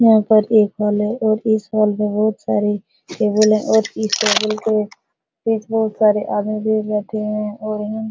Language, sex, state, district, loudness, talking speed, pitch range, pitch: Hindi, female, Bihar, Supaul, -18 LUFS, 200 wpm, 210-220 Hz, 215 Hz